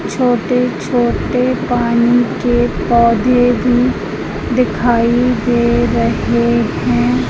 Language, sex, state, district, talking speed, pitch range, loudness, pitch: Hindi, female, Madhya Pradesh, Umaria, 80 wpm, 230-245 Hz, -14 LUFS, 240 Hz